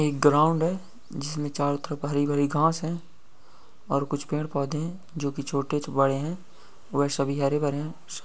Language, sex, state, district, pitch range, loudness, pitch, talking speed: Hindi, male, Uttar Pradesh, Ghazipur, 140-160 Hz, -27 LUFS, 145 Hz, 175 wpm